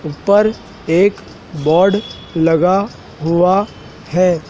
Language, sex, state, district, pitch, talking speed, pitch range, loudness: Hindi, male, Madhya Pradesh, Dhar, 180 Hz, 80 wpm, 165-200 Hz, -15 LUFS